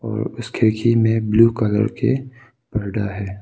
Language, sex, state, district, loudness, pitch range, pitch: Hindi, male, Arunachal Pradesh, Papum Pare, -19 LUFS, 105-120 Hz, 110 Hz